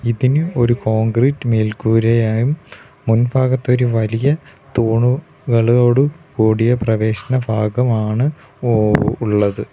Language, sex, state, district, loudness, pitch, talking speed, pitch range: Malayalam, male, Kerala, Kollam, -16 LUFS, 120 Hz, 80 wpm, 110-130 Hz